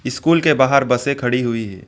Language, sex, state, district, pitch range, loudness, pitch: Hindi, male, West Bengal, Alipurduar, 120-140 Hz, -16 LUFS, 125 Hz